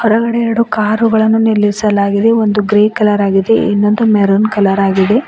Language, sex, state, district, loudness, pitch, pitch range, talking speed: Kannada, female, Karnataka, Bidar, -12 LUFS, 215 Hz, 205-225 Hz, 135 wpm